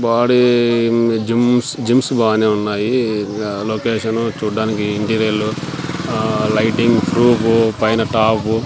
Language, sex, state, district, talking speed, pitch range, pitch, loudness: Telugu, male, Andhra Pradesh, Sri Satya Sai, 105 wpm, 110-120 Hz, 115 Hz, -16 LUFS